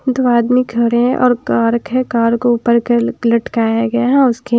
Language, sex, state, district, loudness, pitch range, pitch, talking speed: Hindi, female, Bihar, Katihar, -14 LUFS, 235-250 Hz, 235 Hz, 195 wpm